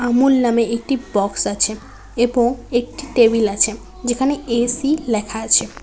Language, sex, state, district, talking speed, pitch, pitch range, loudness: Bengali, female, West Bengal, Cooch Behar, 135 wpm, 240 Hz, 220-250 Hz, -18 LUFS